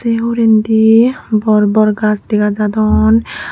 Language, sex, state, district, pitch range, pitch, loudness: Chakma, female, Tripura, Unakoti, 210-225 Hz, 215 Hz, -12 LUFS